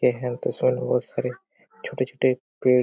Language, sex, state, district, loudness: Hindi, male, Chhattisgarh, Korba, -25 LUFS